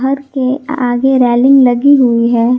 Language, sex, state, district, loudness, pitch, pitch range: Hindi, female, Jharkhand, Garhwa, -10 LUFS, 255 Hz, 245-270 Hz